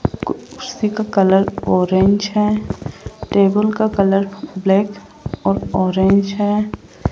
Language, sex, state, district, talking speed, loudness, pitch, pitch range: Hindi, female, Rajasthan, Jaipur, 100 wpm, -17 LUFS, 200 Hz, 195-210 Hz